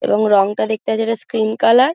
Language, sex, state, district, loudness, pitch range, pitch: Bengali, female, West Bengal, Dakshin Dinajpur, -16 LUFS, 215-230 Hz, 220 Hz